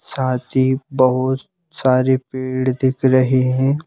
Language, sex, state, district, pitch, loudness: Hindi, male, Madhya Pradesh, Bhopal, 130 Hz, -18 LUFS